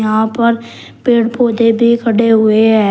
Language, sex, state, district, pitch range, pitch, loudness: Hindi, male, Uttar Pradesh, Shamli, 220-235 Hz, 230 Hz, -12 LUFS